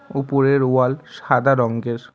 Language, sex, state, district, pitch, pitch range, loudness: Bengali, male, West Bengal, Alipurduar, 130 Hz, 125-140 Hz, -18 LUFS